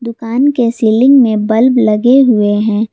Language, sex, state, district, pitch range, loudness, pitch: Hindi, female, Jharkhand, Garhwa, 215-250 Hz, -10 LUFS, 230 Hz